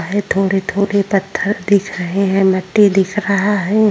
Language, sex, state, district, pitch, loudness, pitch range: Hindi, female, Uttar Pradesh, Jyotiba Phule Nagar, 200 Hz, -15 LUFS, 195-205 Hz